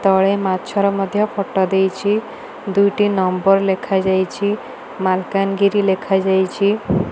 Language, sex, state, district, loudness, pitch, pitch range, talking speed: Odia, female, Odisha, Malkangiri, -17 LUFS, 195 Hz, 190-200 Hz, 95 wpm